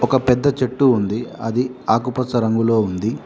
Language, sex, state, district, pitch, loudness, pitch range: Telugu, male, Telangana, Mahabubabad, 120 Hz, -19 LUFS, 115-130 Hz